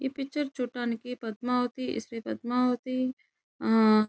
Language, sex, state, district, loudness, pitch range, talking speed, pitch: Telugu, female, Andhra Pradesh, Chittoor, -30 LUFS, 230-255 Hz, 105 wpm, 250 Hz